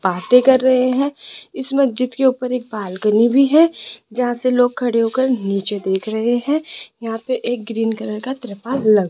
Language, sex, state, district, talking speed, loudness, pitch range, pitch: Hindi, female, Rajasthan, Jaipur, 200 wpm, -18 LUFS, 220-260 Hz, 245 Hz